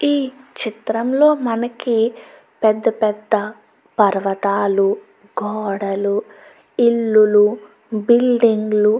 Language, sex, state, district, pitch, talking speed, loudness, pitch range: Telugu, female, Andhra Pradesh, Chittoor, 220 Hz, 80 wpm, -18 LUFS, 210-240 Hz